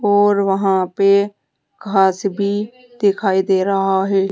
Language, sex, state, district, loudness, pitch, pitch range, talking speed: Hindi, female, Uttar Pradesh, Saharanpur, -17 LUFS, 195 Hz, 195-205 Hz, 125 wpm